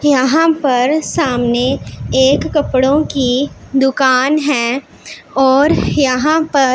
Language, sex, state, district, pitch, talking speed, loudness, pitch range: Hindi, female, Punjab, Pathankot, 270 Hz, 100 wpm, -14 LUFS, 255-295 Hz